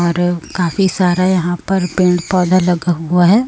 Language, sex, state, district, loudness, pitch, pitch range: Hindi, female, Chhattisgarh, Raipur, -15 LUFS, 180 Hz, 175-185 Hz